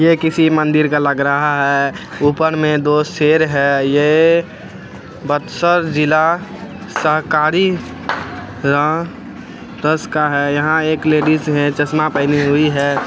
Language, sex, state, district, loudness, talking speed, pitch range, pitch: Hindi, male, Bihar, Araria, -15 LUFS, 120 wpm, 145-160 Hz, 150 Hz